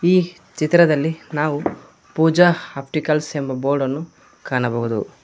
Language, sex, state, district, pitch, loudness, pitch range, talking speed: Kannada, male, Karnataka, Koppal, 155 Hz, -19 LUFS, 140-165 Hz, 90 wpm